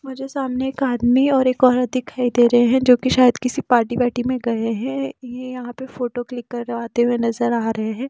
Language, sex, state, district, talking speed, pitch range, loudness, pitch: Hindi, female, Delhi, New Delhi, 220 wpm, 240-260 Hz, -19 LUFS, 250 Hz